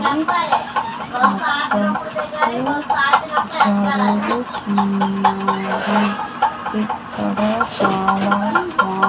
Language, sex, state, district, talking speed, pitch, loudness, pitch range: Telugu, female, Andhra Pradesh, Manyam, 35 wpm, 215 Hz, -18 LUFS, 210-275 Hz